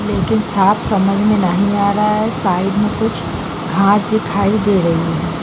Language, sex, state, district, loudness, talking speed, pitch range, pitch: Hindi, female, Bihar, Vaishali, -15 LUFS, 200 wpm, 185-210 Hz, 200 Hz